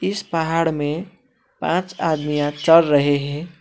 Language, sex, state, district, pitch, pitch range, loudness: Hindi, male, West Bengal, Alipurduar, 165 Hz, 150-180 Hz, -19 LUFS